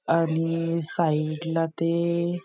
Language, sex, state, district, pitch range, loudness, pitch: Marathi, female, Maharashtra, Nagpur, 165-170 Hz, -25 LUFS, 165 Hz